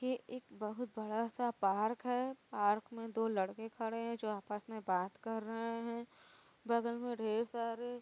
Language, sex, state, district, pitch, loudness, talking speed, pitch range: Hindi, female, Uttar Pradesh, Varanasi, 230 Hz, -39 LUFS, 185 wpm, 215-240 Hz